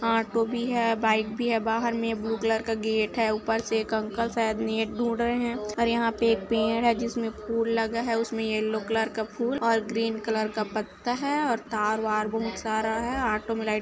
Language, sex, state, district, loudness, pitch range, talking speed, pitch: Hindi, female, Chhattisgarh, Kabirdham, -27 LUFS, 220-230 Hz, 225 wpm, 225 Hz